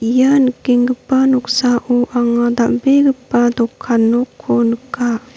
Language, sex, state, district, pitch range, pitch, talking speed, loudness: Garo, female, Meghalaya, North Garo Hills, 240-260 Hz, 245 Hz, 90 wpm, -15 LUFS